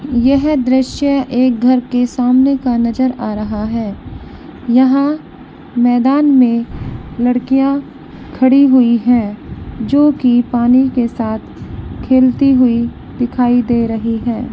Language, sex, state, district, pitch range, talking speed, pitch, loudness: Hindi, female, Bihar, Bhagalpur, 235-265 Hz, 110 wpm, 250 Hz, -13 LUFS